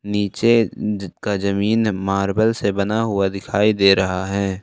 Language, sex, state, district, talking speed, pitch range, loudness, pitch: Hindi, male, Jharkhand, Ranchi, 140 wpm, 95-105 Hz, -19 LUFS, 100 Hz